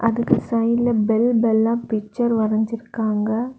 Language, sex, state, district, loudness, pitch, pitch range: Tamil, female, Tamil Nadu, Kanyakumari, -20 LUFS, 230 Hz, 220-235 Hz